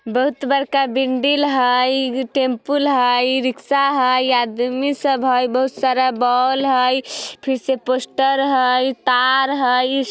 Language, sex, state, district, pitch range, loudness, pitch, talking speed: Bajjika, female, Bihar, Vaishali, 250-270 Hz, -17 LUFS, 260 Hz, 135 wpm